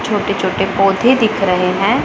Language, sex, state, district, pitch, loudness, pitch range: Hindi, female, Punjab, Pathankot, 195 Hz, -14 LUFS, 190-220 Hz